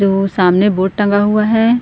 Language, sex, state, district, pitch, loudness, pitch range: Hindi, female, Chhattisgarh, Korba, 205 Hz, -13 LUFS, 195-215 Hz